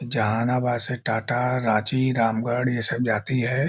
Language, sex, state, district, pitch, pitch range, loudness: Hindi, male, Bihar, Jahanabad, 120 Hz, 115-125 Hz, -23 LUFS